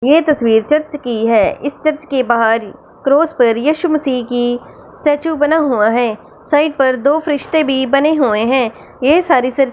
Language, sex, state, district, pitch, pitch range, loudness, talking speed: Hindi, female, Punjab, Fazilka, 275 Hz, 245-305 Hz, -14 LUFS, 175 wpm